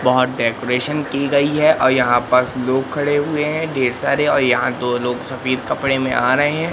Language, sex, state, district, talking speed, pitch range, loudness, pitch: Hindi, male, Madhya Pradesh, Katni, 215 wpm, 125-145 Hz, -17 LUFS, 130 Hz